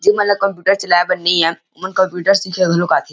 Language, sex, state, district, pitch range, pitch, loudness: Chhattisgarhi, male, Chhattisgarh, Rajnandgaon, 175-195 Hz, 185 Hz, -15 LUFS